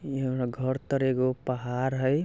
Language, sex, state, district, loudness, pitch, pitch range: Bajjika, male, Bihar, Vaishali, -28 LUFS, 130 Hz, 130-135 Hz